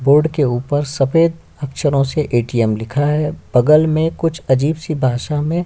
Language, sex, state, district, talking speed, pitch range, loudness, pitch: Hindi, male, Chhattisgarh, Korba, 190 wpm, 130-155 Hz, -16 LUFS, 145 Hz